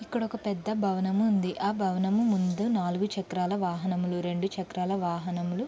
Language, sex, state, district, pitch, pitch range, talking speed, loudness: Telugu, female, Andhra Pradesh, Krishna, 190 Hz, 180-205 Hz, 150 wpm, -29 LUFS